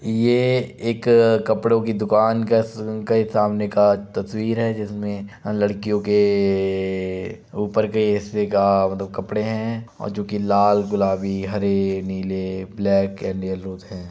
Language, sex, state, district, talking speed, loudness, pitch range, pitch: Hindi, male, Uttar Pradesh, Budaun, 135 wpm, -21 LUFS, 95-110 Hz, 105 Hz